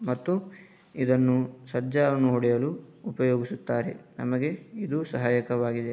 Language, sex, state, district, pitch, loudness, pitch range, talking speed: Kannada, male, Karnataka, Dharwad, 130 Hz, -27 LUFS, 125-155 Hz, 90 wpm